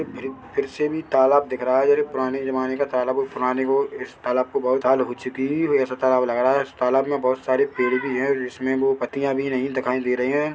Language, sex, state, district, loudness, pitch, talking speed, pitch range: Hindi, male, Chhattisgarh, Bilaspur, -22 LUFS, 130 Hz, 270 wpm, 125-140 Hz